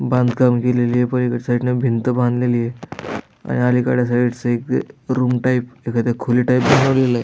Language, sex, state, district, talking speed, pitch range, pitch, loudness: Marathi, male, Maharashtra, Aurangabad, 140 wpm, 120-125 Hz, 125 Hz, -18 LUFS